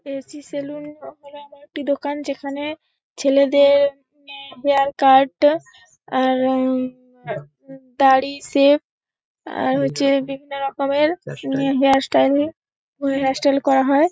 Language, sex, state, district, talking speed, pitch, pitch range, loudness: Bengali, female, West Bengal, Paschim Medinipur, 105 wpm, 275 Hz, 270-285 Hz, -19 LUFS